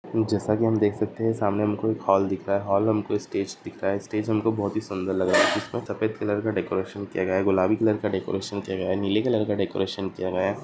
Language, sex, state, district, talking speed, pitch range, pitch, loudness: Hindi, male, Maharashtra, Aurangabad, 270 wpm, 95-110 Hz, 100 Hz, -25 LUFS